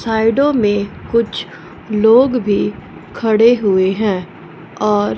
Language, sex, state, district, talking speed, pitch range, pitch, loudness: Hindi, female, Punjab, Fazilka, 105 wpm, 195-230 Hz, 210 Hz, -15 LUFS